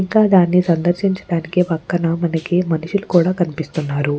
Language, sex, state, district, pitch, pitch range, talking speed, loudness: Telugu, female, Andhra Pradesh, Chittoor, 175 Hz, 160-180 Hz, 115 wpm, -17 LUFS